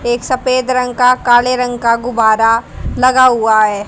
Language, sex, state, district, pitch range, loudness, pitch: Hindi, female, Haryana, Jhajjar, 225-255 Hz, -12 LUFS, 245 Hz